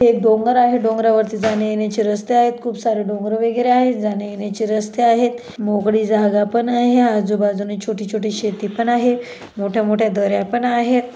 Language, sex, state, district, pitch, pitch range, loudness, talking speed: Marathi, female, Maharashtra, Dhule, 220 Hz, 210-240 Hz, -17 LUFS, 165 wpm